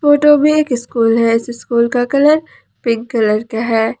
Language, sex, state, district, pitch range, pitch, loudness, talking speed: Hindi, female, Jharkhand, Palamu, 230-290 Hz, 240 Hz, -14 LUFS, 195 wpm